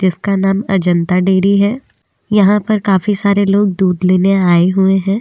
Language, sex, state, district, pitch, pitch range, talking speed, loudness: Hindi, female, Delhi, New Delhi, 195 Hz, 185-200 Hz, 185 wpm, -13 LUFS